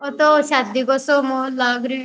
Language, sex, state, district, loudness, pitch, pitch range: Rajasthani, female, Rajasthan, Churu, -17 LUFS, 265 Hz, 260-285 Hz